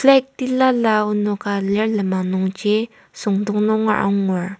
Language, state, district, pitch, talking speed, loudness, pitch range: Ao, Nagaland, Kohima, 210 Hz, 115 wpm, -19 LUFS, 200-220 Hz